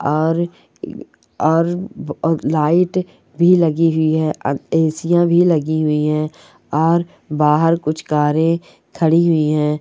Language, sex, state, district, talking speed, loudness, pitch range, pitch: Hindi, female, Uttar Pradesh, Gorakhpur, 140 wpm, -17 LUFS, 150-170 Hz, 160 Hz